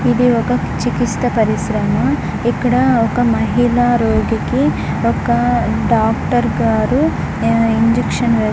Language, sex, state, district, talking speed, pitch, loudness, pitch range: Telugu, female, Andhra Pradesh, Guntur, 100 wpm, 240 Hz, -15 LUFS, 225-245 Hz